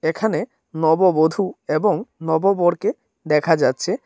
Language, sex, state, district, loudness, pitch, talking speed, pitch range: Bengali, male, Tripura, Dhalai, -19 LUFS, 165 Hz, 90 wpm, 160-195 Hz